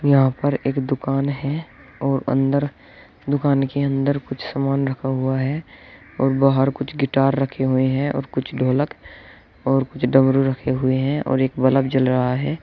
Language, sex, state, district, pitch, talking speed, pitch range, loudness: Hindi, male, Uttar Pradesh, Shamli, 135 Hz, 175 wpm, 130-140 Hz, -20 LUFS